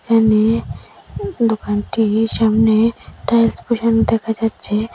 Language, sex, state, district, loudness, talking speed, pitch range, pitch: Bengali, female, Assam, Hailakandi, -16 LUFS, 85 wpm, 220-230 Hz, 225 Hz